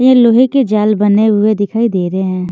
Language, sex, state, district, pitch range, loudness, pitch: Hindi, female, Maharashtra, Washim, 200-235 Hz, -12 LUFS, 215 Hz